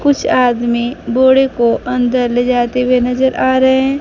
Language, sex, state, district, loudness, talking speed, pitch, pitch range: Hindi, female, Bihar, Kaimur, -13 LUFS, 180 wpm, 250 Hz, 245-260 Hz